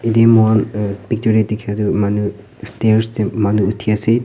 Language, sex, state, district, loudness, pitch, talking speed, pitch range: Nagamese, male, Nagaland, Kohima, -16 LUFS, 105 Hz, 170 wpm, 105-110 Hz